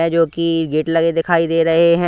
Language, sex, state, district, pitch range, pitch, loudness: Hindi, male, Punjab, Kapurthala, 165-170 Hz, 165 Hz, -16 LUFS